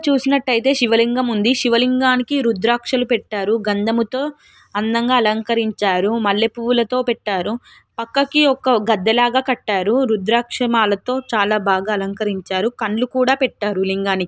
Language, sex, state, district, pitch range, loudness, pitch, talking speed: Telugu, female, Telangana, Nalgonda, 210-255 Hz, -18 LUFS, 230 Hz, 105 wpm